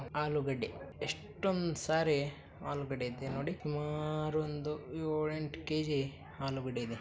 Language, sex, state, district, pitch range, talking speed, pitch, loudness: Kannada, male, Karnataka, Bijapur, 135-155 Hz, 110 wpm, 150 Hz, -37 LUFS